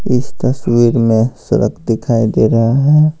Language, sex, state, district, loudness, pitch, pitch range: Hindi, male, Bihar, Patna, -13 LUFS, 120 Hz, 115-135 Hz